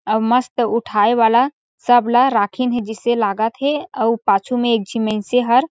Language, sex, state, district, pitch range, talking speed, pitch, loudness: Chhattisgarhi, female, Chhattisgarh, Sarguja, 220-250 Hz, 200 wpm, 235 Hz, -17 LUFS